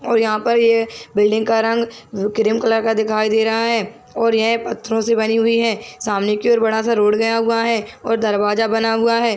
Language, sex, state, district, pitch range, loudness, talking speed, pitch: Hindi, female, Chhattisgarh, Bilaspur, 220-230 Hz, -17 LUFS, 230 wpm, 225 Hz